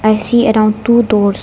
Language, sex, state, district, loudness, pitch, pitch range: English, female, Arunachal Pradesh, Lower Dibang Valley, -12 LUFS, 215 Hz, 215-235 Hz